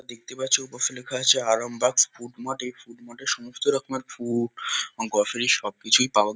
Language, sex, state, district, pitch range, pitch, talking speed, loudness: Bengali, male, West Bengal, Kolkata, 120-130 Hz, 120 Hz, 200 wpm, -24 LUFS